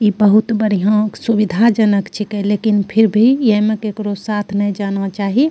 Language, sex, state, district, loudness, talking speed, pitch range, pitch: Angika, female, Bihar, Bhagalpur, -15 LUFS, 165 wpm, 205-220 Hz, 210 Hz